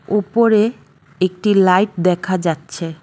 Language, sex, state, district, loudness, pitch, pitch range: Bengali, female, West Bengal, Cooch Behar, -16 LUFS, 185 Hz, 170-210 Hz